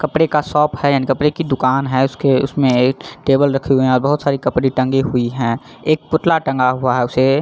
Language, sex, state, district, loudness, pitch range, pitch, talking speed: Hindi, male, Jharkhand, Jamtara, -16 LUFS, 130-150 Hz, 135 Hz, 240 wpm